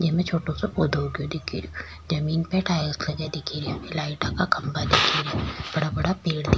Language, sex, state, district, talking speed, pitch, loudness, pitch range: Rajasthani, female, Rajasthan, Churu, 180 wpm, 155 Hz, -25 LUFS, 150-165 Hz